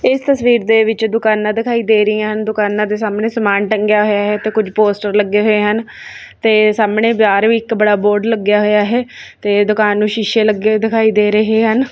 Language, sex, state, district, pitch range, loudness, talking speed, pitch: Punjabi, female, Punjab, Kapurthala, 210-225 Hz, -14 LUFS, 210 wpm, 215 Hz